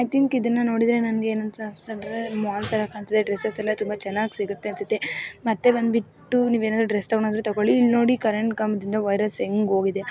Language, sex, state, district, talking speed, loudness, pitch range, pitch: Kannada, female, Karnataka, Mysore, 195 wpm, -23 LUFS, 210-230 Hz, 215 Hz